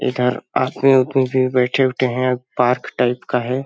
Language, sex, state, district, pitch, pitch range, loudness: Hindi, male, Chhattisgarh, Balrampur, 130 Hz, 125-130 Hz, -18 LUFS